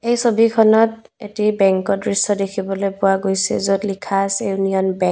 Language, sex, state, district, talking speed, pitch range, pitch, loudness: Assamese, female, Assam, Kamrup Metropolitan, 165 wpm, 195-220 Hz, 195 Hz, -17 LUFS